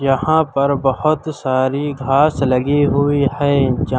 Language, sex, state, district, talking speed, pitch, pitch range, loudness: Hindi, male, Uttar Pradesh, Lucknow, 135 wpm, 140 Hz, 135-145 Hz, -16 LUFS